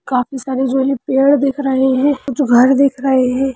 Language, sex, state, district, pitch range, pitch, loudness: Hindi, female, Bihar, Lakhisarai, 260-275 Hz, 265 Hz, -14 LUFS